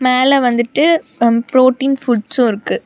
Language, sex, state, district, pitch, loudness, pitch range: Tamil, female, Tamil Nadu, Namakkal, 255 Hz, -14 LUFS, 240-270 Hz